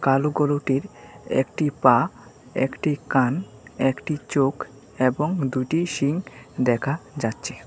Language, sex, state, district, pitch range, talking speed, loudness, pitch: Bengali, male, Tripura, West Tripura, 130-150 Hz, 100 wpm, -23 LUFS, 140 Hz